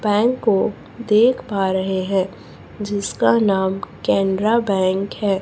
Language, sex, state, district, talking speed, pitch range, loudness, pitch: Hindi, female, Chhattisgarh, Raipur, 120 wpm, 190-215 Hz, -19 LUFS, 200 Hz